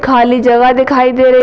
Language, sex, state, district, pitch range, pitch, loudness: Hindi, female, Uttar Pradesh, Gorakhpur, 245-255 Hz, 255 Hz, -9 LUFS